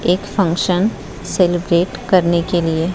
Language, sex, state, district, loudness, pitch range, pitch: Hindi, male, Chhattisgarh, Raipur, -17 LUFS, 170-185 Hz, 180 Hz